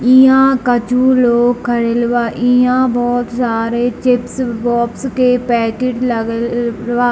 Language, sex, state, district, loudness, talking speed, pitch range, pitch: Hindi, male, Bihar, Darbhanga, -14 LUFS, 110 wpm, 235-250 Hz, 245 Hz